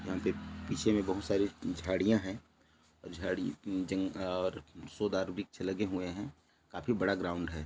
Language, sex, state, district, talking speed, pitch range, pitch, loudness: Hindi, male, Chhattisgarh, Bilaspur, 210 wpm, 90-100 Hz, 95 Hz, -35 LUFS